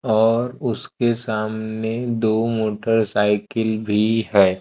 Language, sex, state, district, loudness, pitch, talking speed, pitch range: Hindi, male, Madhya Pradesh, Bhopal, -20 LUFS, 110 Hz, 90 wpm, 110-115 Hz